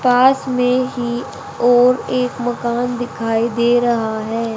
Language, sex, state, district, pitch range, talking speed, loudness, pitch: Hindi, female, Haryana, Charkhi Dadri, 235-250 Hz, 130 wpm, -17 LUFS, 245 Hz